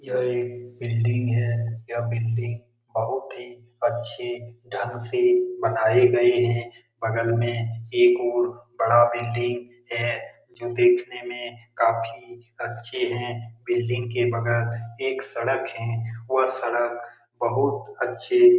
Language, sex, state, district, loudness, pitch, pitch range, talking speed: Hindi, male, Bihar, Lakhisarai, -24 LUFS, 120 Hz, 115-125 Hz, 125 wpm